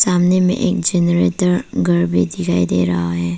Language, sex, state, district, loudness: Hindi, female, Arunachal Pradesh, Papum Pare, -16 LUFS